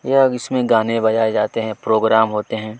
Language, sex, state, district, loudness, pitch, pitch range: Hindi, male, Chhattisgarh, Kabirdham, -17 LUFS, 110 Hz, 110-115 Hz